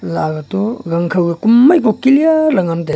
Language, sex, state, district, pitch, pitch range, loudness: Wancho, male, Arunachal Pradesh, Longding, 195 Hz, 170-265 Hz, -13 LUFS